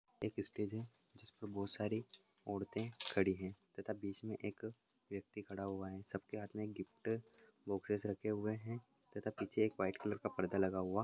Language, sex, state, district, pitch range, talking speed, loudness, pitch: Hindi, male, Uttar Pradesh, Etah, 95-110 Hz, 200 wpm, -43 LUFS, 105 Hz